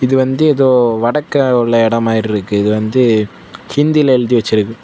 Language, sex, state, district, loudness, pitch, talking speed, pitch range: Tamil, male, Tamil Nadu, Kanyakumari, -13 LUFS, 120 Hz, 160 wpm, 110-130 Hz